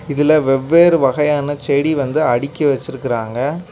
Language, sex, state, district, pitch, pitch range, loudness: Tamil, male, Tamil Nadu, Kanyakumari, 145 Hz, 135-155 Hz, -15 LUFS